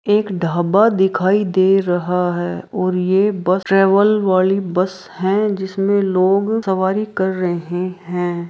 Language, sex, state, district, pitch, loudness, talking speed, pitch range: Hindi, female, Bihar, Araria, 190 Hz, -17 LUFS, 135 wpm, 180-195 Hz